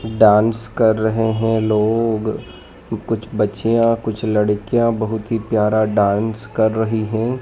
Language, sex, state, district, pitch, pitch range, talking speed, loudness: Hindi, male, Madhya Pradesh, Dhar, 110 Hz, 110-115 Hz, 130 wpm, -18 LUFS